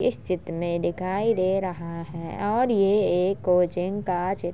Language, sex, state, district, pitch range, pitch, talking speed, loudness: Hindi, male, Uttar Pradesh, Jalaun, 175-195 Hz, 185 Hz, 185 wpm, -25 LUFS